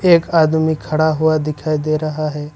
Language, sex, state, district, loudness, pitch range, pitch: Hindi, male, Jharkhand, Ranchi, -16 LUFS, 155-160 Hz, 155 Hz